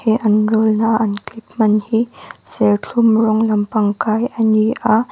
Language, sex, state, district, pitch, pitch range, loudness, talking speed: Mizo, female, Mizoram, Aizawl, 220 Hz, 215-225 Hz, -16 LUFS, 190 wpm